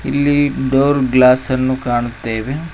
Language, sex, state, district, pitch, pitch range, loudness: Kannada, male, Karnataka, Koppal, 130 Hz, 125-140 Hz, -15 LUFS